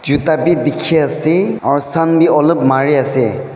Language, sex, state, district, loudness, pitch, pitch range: Nagamese, male, Nagaland, Dimapur, -13 LUFS, 155 Hz, 145-165 Hz